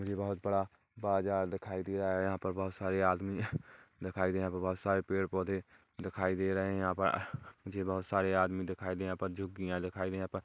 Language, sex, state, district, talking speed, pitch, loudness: Hindi, male, Chhattisgarh, Kabirdham, 200 wpm, 95 Hz, -35 LUFS